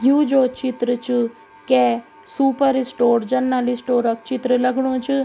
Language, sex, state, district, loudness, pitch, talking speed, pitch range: Garhwali, female, Uttarakhand, Tehri Garhwal, -19 LUFS, 250 Hz, 150 wpm, 235-260 Hz